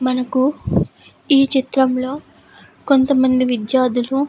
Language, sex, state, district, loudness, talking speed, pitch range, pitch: Telugu, female, Andhra Pradesh, Guntur, -17 LUFS, 85 wpm, 255-275 Hz, 260 Hz